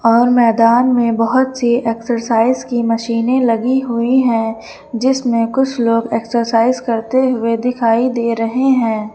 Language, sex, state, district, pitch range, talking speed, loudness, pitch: Hindi, female, Uttar Pradesh, Lucknow, 230-250 Hz, 140 wpm, -15 LUFS, 235 Hz